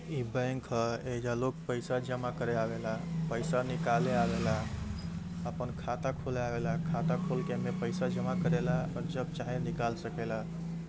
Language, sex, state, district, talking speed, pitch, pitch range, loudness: Hindi, male, Uttar Pradesh, Gorakhpur, 155 wpm, 155 Hz, 125-165 Hz, -34 LUFS